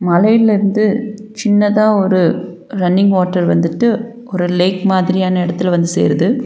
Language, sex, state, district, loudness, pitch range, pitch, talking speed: Tamil, female, Tamil Nadu, Nilgiris, -14 LUFS, 180-215 Hz, 190 Hz, 120 wpm